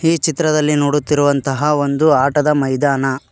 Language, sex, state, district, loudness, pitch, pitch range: Kannada, male, Karnataka, Koppal, -15 LUFS, 145 Hz, 140-150 Hz